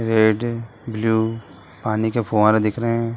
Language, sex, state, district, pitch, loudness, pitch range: Hindi, male, Uttar Pradesh, Jalaun, 110 Hz, -20 LUFS, 110-115 Hz